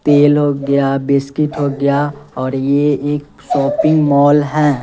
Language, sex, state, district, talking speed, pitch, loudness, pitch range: Hindi, male, Bihar, West Champaran, 150 wpm, 145 Hz, -14 LUFS, 140-145 Hz